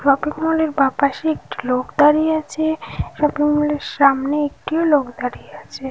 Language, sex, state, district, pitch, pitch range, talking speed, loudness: Bengali, female, West Bengal, North 24 Parganas, 295 Hz, 275-310 Hz, 180 wpm, -18 LUFS